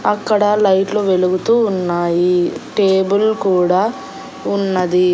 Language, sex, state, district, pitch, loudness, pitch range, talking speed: Telugu, female, Andhra Pradesh, Annamaya, 190 Hz, -15 LUFS, 180-205 Hz, 80 wpm